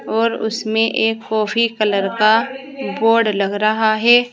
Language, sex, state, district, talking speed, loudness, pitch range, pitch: Hindi, female, Uttar Pradesh, Saharanpur, 140 wpm, -16 LUFS, 215-230 Hz, 220 Hz